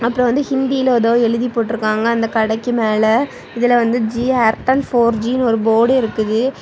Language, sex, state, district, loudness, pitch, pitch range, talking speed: Tamil, female, Tamil Nadu, Kanyakumari, -16 LUFS, 235 Hz, 225-250 Hz, 170 wpm